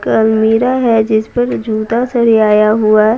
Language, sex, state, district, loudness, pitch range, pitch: Hindi, female, Bihar, Patna, -12 LUFS, 215-235 Hz, 220 Hz